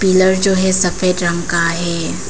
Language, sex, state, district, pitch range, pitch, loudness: Hindi, female, Arunachal Pradesh, Papum Pare, 170-190 Hz, 180 Hz, -15 LUFS